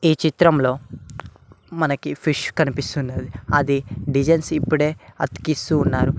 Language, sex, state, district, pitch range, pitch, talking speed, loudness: Telugu, male, Telangana, Mahabubabad, 135-155 Hz, 145 Hz, 85 wpm, -21 LUFS